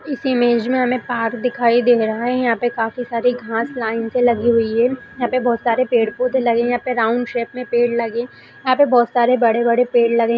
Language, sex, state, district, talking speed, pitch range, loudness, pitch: Hindi, female, Bihar, Madhepura, 240 wpm, 235-250 Hz, -18 LUFS, 240 Hz